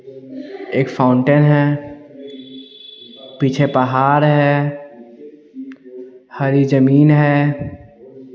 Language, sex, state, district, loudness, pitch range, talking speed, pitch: Hindi, male, Bihar, Patna, -14 LUFS, 130-145 Hz, 65 wpm, 140 Hz